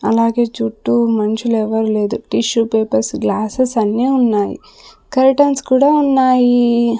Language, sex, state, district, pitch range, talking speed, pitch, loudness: Telugu, female, Andhra Pradesh, Sri Satya Sai, 220-255 Hz, 110 wpm, 230 Hz, -15 LUFS